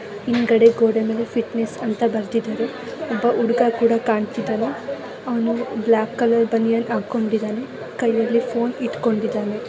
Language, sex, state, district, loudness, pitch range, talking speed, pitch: Kannada, female, Karnataka, Bellary, -20 LUFS, 225-235 Hz, 120 wpm, 230 Hz